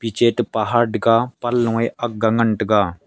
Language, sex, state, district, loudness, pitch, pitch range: Wancho, male, Arunachal Pradesh, Longding, -18 LUFS, 115 Hz, 110-120 Hz